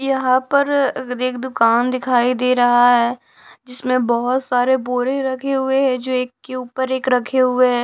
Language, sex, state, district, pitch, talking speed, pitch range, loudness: Hindi, female, Odisha, Sambalpur, 255 Hz, 185 wpm, 250-260 Hz, -17 LUFS